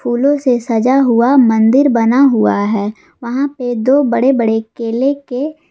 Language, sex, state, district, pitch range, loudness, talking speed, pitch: Hindi, female, Jharkhand, Garhwa, 230-275 Hz, -13 LUFS, 155 wpm, 245 Hz